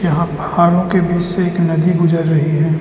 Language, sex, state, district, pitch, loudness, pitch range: Hindi, male, Arunachal Pradesh, Lower Dibang Valley, 170 Hz, -15 LUFS, 160-175 Hz